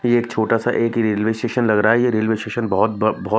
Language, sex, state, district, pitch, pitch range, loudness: Hindi, male, Maharashtra, Mumbai Suburban, 115 Hz, 110-120 Hz, -18 LUFS